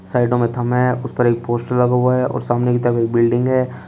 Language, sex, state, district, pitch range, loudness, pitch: Hindi, male, Uttar Pradesh, Shamli, 120-125 Hz, -17 LUFS, 120 Hz